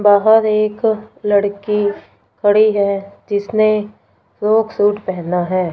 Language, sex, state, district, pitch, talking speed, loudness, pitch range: Hindi, female, Punjab, Fazilka, 210 Hz, 105 wpm, -16 LUFS, 200-215 Hz